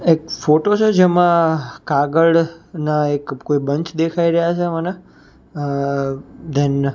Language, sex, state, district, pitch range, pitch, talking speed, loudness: Gujarati, male, Gujarat, Gandhinagar, 145-170 Hz, 160 Hz, 130 wpm, -17 LUFS